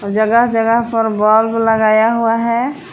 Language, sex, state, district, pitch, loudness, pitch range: Hindi, female, Jharkhand, Palamu, 225 Hz, -13 LUFS, 220-235 Hz